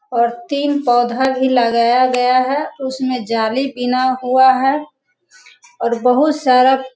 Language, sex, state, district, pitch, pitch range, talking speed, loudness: Hindi, female, Bihar, Sitamarhi, 260 Hz, 245-275 Hz, 140 wpm, -15 LUFS